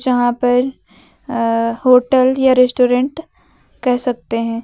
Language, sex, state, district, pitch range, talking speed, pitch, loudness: Hindi, female, Uttar Pradesh, Lucknow, 240-260 Hz, 115 wpm, 250 Hz, -15 LUFS